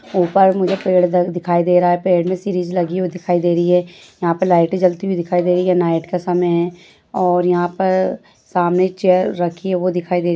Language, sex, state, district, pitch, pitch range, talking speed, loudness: Hindi, female, Bihar, Bhagalpur, 180 Hz, 175-185 Hz, 230 wpm, -17 LUFS